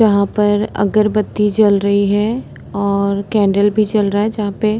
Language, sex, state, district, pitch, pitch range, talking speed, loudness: Hindi, female, Uttar Pradesh, Etah, 210 Hz, 200-215 Hz, 185 wpm, -15 LUFS